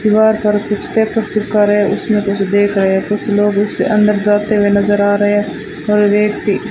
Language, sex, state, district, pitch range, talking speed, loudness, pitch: Hindi, female, Rajasthan, Bikaner, 205-210 Hz, 225 wpm, -14 LUFS, 205 Hz